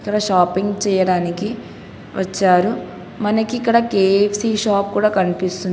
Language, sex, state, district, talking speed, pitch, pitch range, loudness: Telugu, female, Telangana, Hyderabad, 75 wpm, 200 Hz, 185-215 Hz, -18 LUFS